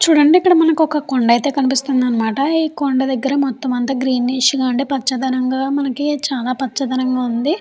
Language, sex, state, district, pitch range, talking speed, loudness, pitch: Telugu, female, Andhra Pradesh, Chittoor, 255-285 Hz, 175 wpm, -16 LUFS, 265 Hz